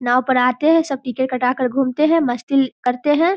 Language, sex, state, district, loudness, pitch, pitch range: Hindi, female, Bihar, Darbhanga, -18 LUFS, 260 Hz, 250-295 Hz